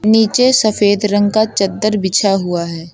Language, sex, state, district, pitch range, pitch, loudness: Hindi, female, Uttar Pradesh, Lucknow, 195-215 Hz, 205 Hz, -14 LUFS